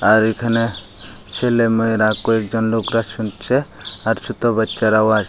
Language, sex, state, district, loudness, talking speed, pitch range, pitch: Bengali, male, Tripura, Unakoti, -18 LUFS, 135 wpm, 110-115 Hz, 110 Hz